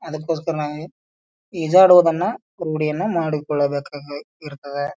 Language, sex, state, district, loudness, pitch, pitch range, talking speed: Kannada, male, Karnataka, Bijapur, -19 LUFS, 150 Hz, 145-165 Hz, 95 wpm